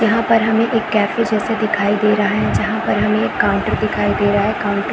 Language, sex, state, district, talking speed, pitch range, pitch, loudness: Hindi, female, Chhattisgarh, Bilaspur, 255 wpm, 205-225 Hz, 210 Hz, -16 LUFS